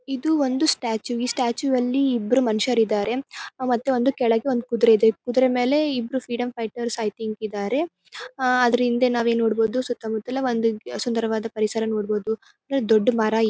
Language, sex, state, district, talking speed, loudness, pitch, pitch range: Kannada, female, Karnataka, Bellary, 170 wpm, -22 LUFS, 240 Hz, 225-255 Hz